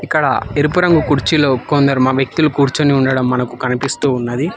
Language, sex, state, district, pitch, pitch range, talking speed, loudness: Telugu, male, Telangana, Hyderabad, 140 Hz, 130-150 Hz, 145 wpm, -14 LUFS